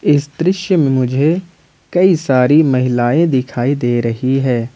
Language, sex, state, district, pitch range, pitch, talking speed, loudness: Hindi, male, Jharkhand, Ranchi, 125-165 Hz, 135 Hz, 150 wpm, -14 LUFS